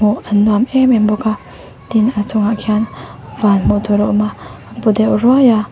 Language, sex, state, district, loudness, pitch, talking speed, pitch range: Mizo, female, Mizoram, Aizawl, -14 LUFS, 215 Hz, 230 wpm, 210-225 Hz